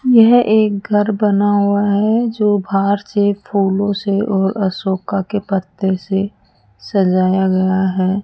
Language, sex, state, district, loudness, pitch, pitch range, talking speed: Hindi, female, Rajasthan, Jaipur, -16 LUFS, 200 Hz, 190-205 Hz, 140 wpm